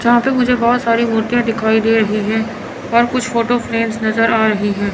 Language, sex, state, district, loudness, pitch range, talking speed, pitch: Hindi, male, Chandigarh, Chandigarh, -15 LUFS, 220-240 Hz, 220 wpm, 230 Hz